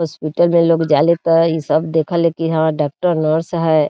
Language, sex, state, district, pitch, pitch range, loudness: Bhojpuri, female, Bihar, Saran, 165 Hz, 155-170 Hz, -16 LUFS